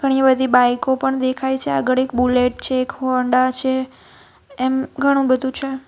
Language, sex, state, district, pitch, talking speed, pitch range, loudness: Gujarati, female, Gujarat, Valsad, 260 Hz, 175 wpm, 255-265 Hz, -18 LUFS